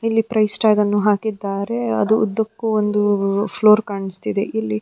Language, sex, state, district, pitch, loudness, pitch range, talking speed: Kannada, female, Karnataka, Dharwad, 210 Hz, -18 LUFS, 200-220 Hz, 125 wpm